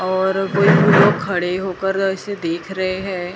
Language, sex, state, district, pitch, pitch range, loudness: Hindi, female, Maharashtra, Gondia, 190 Hz, 185-195 Hz, -17 LUFS